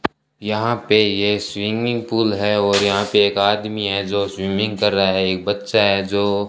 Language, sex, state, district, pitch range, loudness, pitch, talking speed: Hindi, male, Rajasthan, Bikaner, 100-105 Hz, -18 LUFS, 100 Hz, 205 wpm